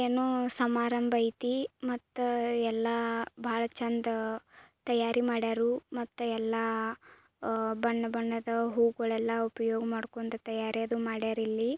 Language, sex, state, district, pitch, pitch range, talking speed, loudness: Kannada, female, Karnataka, Belgaum, 230 Hz, 225-240 Hz, 95 wpm, -32 LUFS